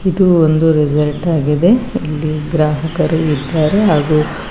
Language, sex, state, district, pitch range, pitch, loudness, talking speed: Kannada, female, Karnataka, Bangalore, 150-170 Hz, 155 Hz, -14 LUFS, 105 wpm